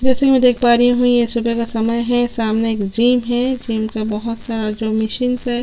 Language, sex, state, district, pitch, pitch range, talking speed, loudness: Hindi, female, Chhattisgarh, Sukma, 235 Hz, 225-245 Hz, 245 wpm, -17 LUFS